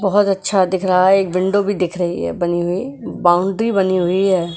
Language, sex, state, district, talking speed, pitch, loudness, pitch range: Hindi, female, Goa, North and South Goa, 225 wpm, 190 Hz, -17 LUFS, 180-195 Hz